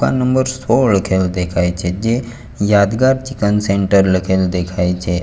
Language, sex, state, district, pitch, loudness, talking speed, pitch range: Gujarati, male, Gujarat, Valsad, 100 Hz, -16 LUFS, 160 wpm, 90-120 Hz